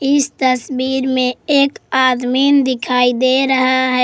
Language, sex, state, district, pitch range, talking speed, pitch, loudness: Hindi, female, Jharkhand, Garhwa, 255-270 Hz, 135 wpm, 260 Hz, -15 LUFS